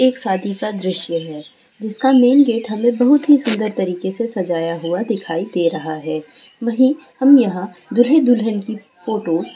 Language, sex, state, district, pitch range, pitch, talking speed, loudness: Hindi, female, Chhattisgarh, Raigarh, 175-245 Hz, 215 Hz, 175 wpm, -17 LUFS